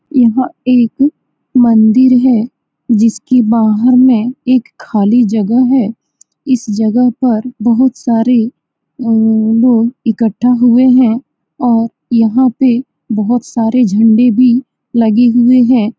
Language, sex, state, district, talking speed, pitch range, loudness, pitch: Hindi, female, Bihar, Saran, 130 wpm, 225-255 Hz, -11 LUFS, 240 Hz